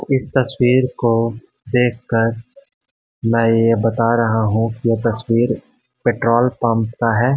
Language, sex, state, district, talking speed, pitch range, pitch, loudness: Hindi, male, Bihar, Patna, 130 wpm, 115-125 Hz, 115 Hz, -17 LUFS